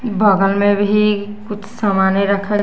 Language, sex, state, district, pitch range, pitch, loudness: Hindi, female, Bihar, West Champaran, 200-210 Hz, 205 Hz, -15 LUFS